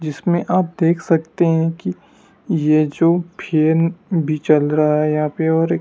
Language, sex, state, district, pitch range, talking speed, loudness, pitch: Hindi, male, Madhya Pradesh, Dhar, 155-170 Hz, 165 wpm, -17 LUFS, 160 Hz